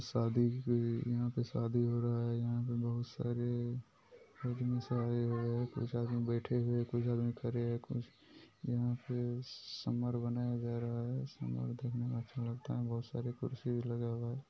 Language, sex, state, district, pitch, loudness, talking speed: Hindi, male, Bihar, Purnia, 120 Hz, -38 LUFS, 180 wpm